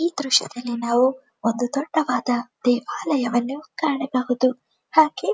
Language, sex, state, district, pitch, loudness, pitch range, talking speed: Kannada, female, Karnataka, Dharwad, 255 Hz, -22 LUFS, 245-300 Hz, 80 wpm